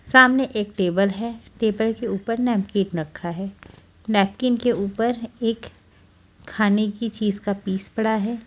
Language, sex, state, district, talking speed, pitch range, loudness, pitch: Hindi, female, Bihar, West Champaran, 150 wpm, 195-230 Hz, -22 LUFS, 215 Hz